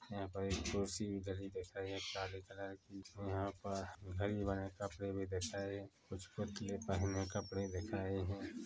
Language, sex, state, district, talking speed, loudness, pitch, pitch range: Hindi, male, Chhattisgarh, Korba, 185 wpm, -43 LUFS, 95 Hz, 95-100 Hz